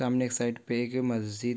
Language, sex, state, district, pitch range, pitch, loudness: Hindi, male, Chhattisgarh, Korba, 120-125 Hz, 120 Hz, -30 LUFS